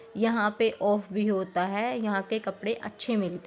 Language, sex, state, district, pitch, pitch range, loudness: Hindi, female, Bihar, Begusarai, 210 Hz, 195-225 Hz, -28 LUFS